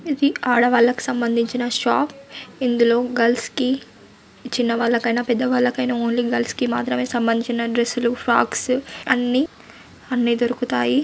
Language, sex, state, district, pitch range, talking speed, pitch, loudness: Telugu, female, Telangana, Karimnagar, 235-255 Hz, 110 wpm, 240 Hz, -20 LUFS